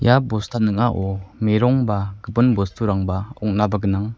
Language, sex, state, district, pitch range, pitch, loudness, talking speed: Garo, male, Meghalaya, West Garo Hills, 100-120 Hz, 105 Hz, -20 LUFS, 130 wpm